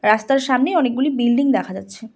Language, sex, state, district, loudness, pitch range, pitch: Bengali, female, West Bengal, Cooch Behar, -18 LUFS, 225-275 Hz, 255 Hz